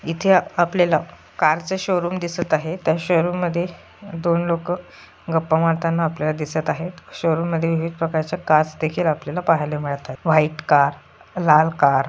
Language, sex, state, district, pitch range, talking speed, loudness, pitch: Marathi, female, Maharashtra, Solapur, 155-175 Hz, 155 wpm, -20 LUFS, 165 Hz